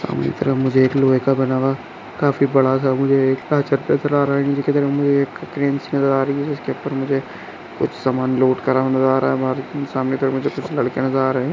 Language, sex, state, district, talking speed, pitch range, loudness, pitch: Hindi, male, Andhra Pradesh, Chittoor, 200 wpm, 130-140 Hz, -19 LUFS, 135 Hz